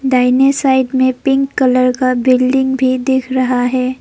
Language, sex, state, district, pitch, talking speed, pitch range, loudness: Hindi, female, Assam, Kamrup Metropolitan, 260 Hz, 165 wpm, 255-265 Hz, -13 LUFS